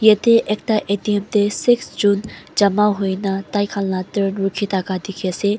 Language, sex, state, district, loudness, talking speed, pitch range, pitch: Nagamese, female, Mizoram, Aizawl, -19 LUFS, 170 wpm, 195-210 Hz, 205 Hz